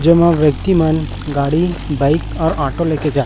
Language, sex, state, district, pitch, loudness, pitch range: Hindi, male, Chhattisgarh, Raipur, 155 Hz, -16 LUFS, 145-170 Hz